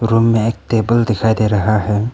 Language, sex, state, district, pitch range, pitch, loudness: Hindi, male, Arunachal Pradesh, Papum Pare, 110-115 Hz, 110 Hz, -15 LUFS